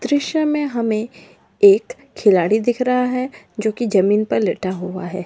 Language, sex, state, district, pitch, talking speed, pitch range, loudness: Magahi, female, Bihar, Samastipur, 235 Hz, 170 wpm, 205-275 Hz, -18 LUFS